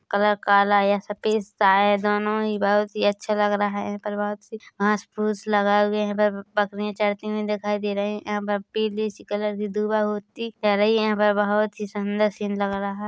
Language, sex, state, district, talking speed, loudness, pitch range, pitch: Hindi, female, Chhattisgarh, Korba, 205 wpm, -23 LUFS, 205-210 Hz, 210 Hz